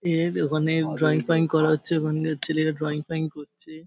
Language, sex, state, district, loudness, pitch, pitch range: Bengali, male, West Bengal, Paschim Medinipur, -24 LUFS, 155 Hz, 155-160 Hz